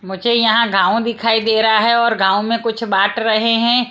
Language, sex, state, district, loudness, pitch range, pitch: Hindi, female, Punjab, Kapurthala, -15 LUFS, 215-235 Hz, 225 Hz